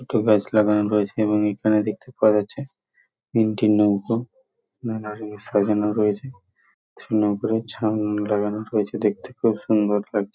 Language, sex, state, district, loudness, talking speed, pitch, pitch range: Bengali, male, West Bengal, Purulia, -22 LUFS, 125 wpm, 105 Hz, 105-115 Hz